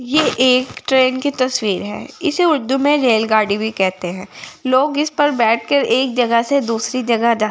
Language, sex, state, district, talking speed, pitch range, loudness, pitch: Hindi, female, Delhi, New Delhi, 185 wpm, 220-280 Hz, -16 LUFS, 255 Hz